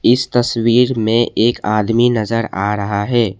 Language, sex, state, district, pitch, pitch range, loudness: Hindi, male, Assam, Kamrup Metropolitan, 115 Hz, 105-120 Hz, -15 LUFS